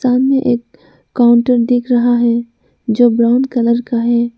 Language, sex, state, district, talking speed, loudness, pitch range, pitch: Hindi, female, Arunachal Pradesh, Lower Dibang Valley, 150 wpm, -13 LUFS, 235-245 Hz, 240 Hz